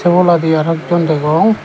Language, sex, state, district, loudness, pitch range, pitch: Chakma, male, Tripura, Dhalai, -13 LUFS, 155-175 Hz, 160 Hz